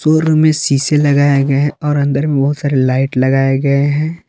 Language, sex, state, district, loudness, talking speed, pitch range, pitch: Hindi, male, Jharkhand, Palamu, -13 LUFS, 225 wpm, 135-150 Hz, 140 Hz